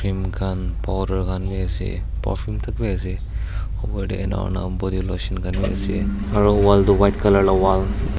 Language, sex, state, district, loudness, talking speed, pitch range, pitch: Nagamese, male, Nagaland, Dimapur, -21 LUFS, 160 wpm, 95-100 Hz, 95 Hz